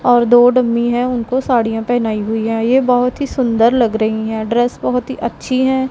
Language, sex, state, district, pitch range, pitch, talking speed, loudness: Hindi, female, Punjab, Pathankot, 225-255 Hz, 240 Hz, 215 wpm, -15 LUFS